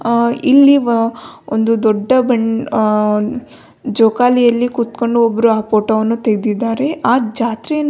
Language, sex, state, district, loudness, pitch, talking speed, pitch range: Kannada, female, Karnataka, Belgaum, -14 LUFS, 230 Hz, 120 wpm, 220-245 Hz